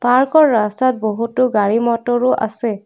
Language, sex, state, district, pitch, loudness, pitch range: Assamese, female, Assam, Kamrup Metropolitan, 235 Hz, -16 LUFS, 220-255 Hz